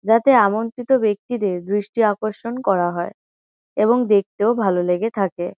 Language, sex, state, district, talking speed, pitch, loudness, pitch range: Bengali, female, West Bengal, Kolkata, 130 wpm, 205 Hz, -19 LUFS, 180-230 Hz